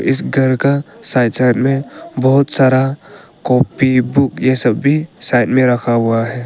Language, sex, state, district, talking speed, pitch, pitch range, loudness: Hindi, male, Arunachal Pradesh, Longding, 160 wpm, 130 Hz, 125-140 Hz, -14 LUFS